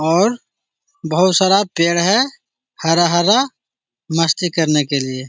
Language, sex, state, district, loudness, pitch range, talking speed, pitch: Magahi, male, Bihar, Jahanabad, -16 LUFS, 160-200 Hz, 115 wpm, 175 Hz